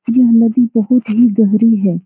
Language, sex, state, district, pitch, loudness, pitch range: Hindi, female, Bihar, Saran, 230 Hz, -12 LUFS, 220-240 Hz